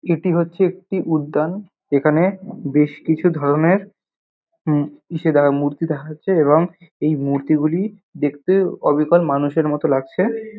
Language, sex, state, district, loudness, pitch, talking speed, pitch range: Bengali, male, West Bengal, North 24 Parganas, -19 LUFS, 160 Hz, 125 wpm, 150-185 Hz